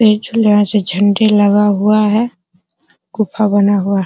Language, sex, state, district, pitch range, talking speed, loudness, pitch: Hindi, female, Bihar, Araria, 200-215 Hz, 160 wpm, -13 LUFS, 210 Hz